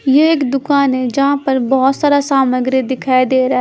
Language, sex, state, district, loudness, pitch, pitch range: Hindi, female, Bihar, Patna, -14 LUFS, 270 Hz, 260-280 Hz